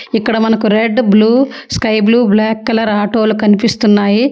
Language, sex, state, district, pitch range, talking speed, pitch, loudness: Telugu, female, Telangana, Hyderabad, 215-230 Hz, 140 wpm, 225 Hz, -12 LUFS